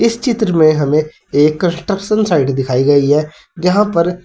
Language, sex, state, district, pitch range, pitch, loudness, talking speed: Hindi, male, Uttar Pradesh, Saharanpur, 145-200 Hz, 165 Hz, -14 LUFS, 170 wpm